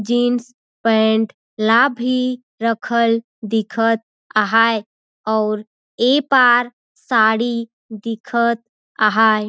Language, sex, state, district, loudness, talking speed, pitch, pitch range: Surgujia, female, Chhattisgarh, Sarguja, -17 LUFS, 80 wpm, 230 Hz, 220-240 Hz